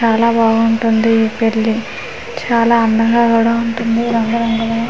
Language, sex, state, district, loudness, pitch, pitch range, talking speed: Telugu, female, Andhra Pradesh, Manyam, -14 LUFS, 230 Hz, 225-230 Hz, 120 wpm